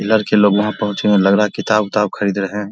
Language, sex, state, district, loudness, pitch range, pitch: Hindi, male, Bihar, Vaishali, -16 LUFS, 100-105 Hz, 105 Hz